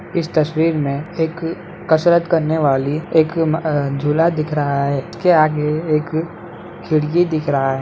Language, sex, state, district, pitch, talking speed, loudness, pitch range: Hindi, male, Bihar, Madhepura, 155 Hz, 160 wpm, -17 LUFS, 150-165 Hz